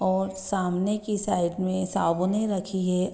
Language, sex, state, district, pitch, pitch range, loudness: Hindi, female, Bihar, Gopalganj, 190 Hz, 185-195 Hz, -26 LUFS